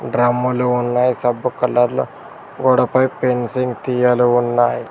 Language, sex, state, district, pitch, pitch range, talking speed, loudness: Telugu, male, Telangana, Mahabubabad, 125 Hz, 120-125 Hz, 100 wpm, -17 LUFS